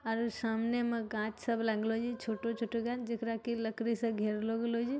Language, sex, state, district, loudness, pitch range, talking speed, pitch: Angika, female, Bihar, Begusarai, -35 LUFS, 225-235 Hz, 205 wpm, 230 Hz